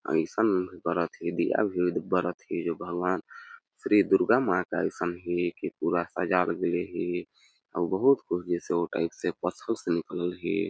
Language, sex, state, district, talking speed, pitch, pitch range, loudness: Awadhi, male, Chhattisgarh, Balrampur, 165 wpm, 90 Hz, 85-90 Hz, -28 LUFS